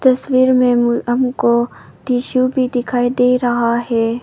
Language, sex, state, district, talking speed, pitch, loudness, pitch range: Hindi, female, Arunachal Pradesh, Papum Pare, 140 wpm, 245 Hz, -15 LUFS, 235-255 Hz